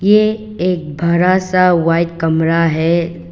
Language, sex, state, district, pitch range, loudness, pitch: Hindi, female, Arunachal Pradesh, Papum Pare, 165-185 Hz, -14 LUFS, 170 Hz